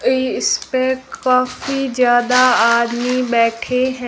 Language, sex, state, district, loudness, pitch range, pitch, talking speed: Hindi, female, Rajasthan, Jaisalmer, -16 LUFS, 240-255 Hz, 250 Hz, 105 wpm